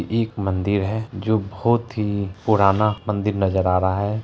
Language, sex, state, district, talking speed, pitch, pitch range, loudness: Hindi, male, Bihar, Araria, 185 wpm, 105 Hz, 95-110 Hz, -21 LUFS